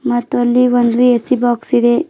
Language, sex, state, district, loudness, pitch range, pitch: Kannada, female, Karnataka, Bidar, -13 LUFS, 240-250 Hz, 245 Hz